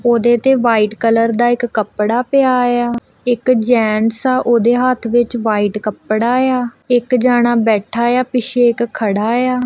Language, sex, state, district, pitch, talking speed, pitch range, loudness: Punjabi, female, Punjab, Kapurthala, 240 Hz, 160 wpm, 225-250 Hz, -14 LUFS